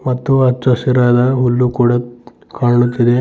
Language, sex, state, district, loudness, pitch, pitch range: Kannada, male, Karnataka, Bidar, -14 LUFS, 125 Hz, 120-125 Hz